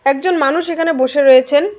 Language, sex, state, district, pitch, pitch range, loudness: Bengali, female, West Bengal, Alipurduar, 290 Hz, 275-335 Hz, -13 LUFS